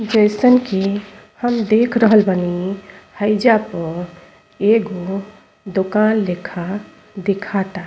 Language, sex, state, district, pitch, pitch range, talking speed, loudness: Bhojpuri, female, Uttar Pradesh, Ghazipur, 200 Hz, 190-215 Hz, 90 wpm, -17 LUFS